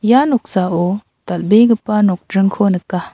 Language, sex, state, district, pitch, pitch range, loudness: Garo, female, Meghalaya, South Garo Hills, 200 Hz, 180-220 Hz, -15 LUFS